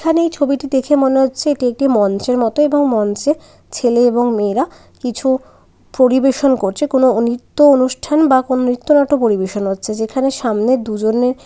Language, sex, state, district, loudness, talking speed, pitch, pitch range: Bengali, female, West Bengal, Dakshin Dinajpur, -15 LUFS, 150 wpm, 255 Hz, 235-280 Hz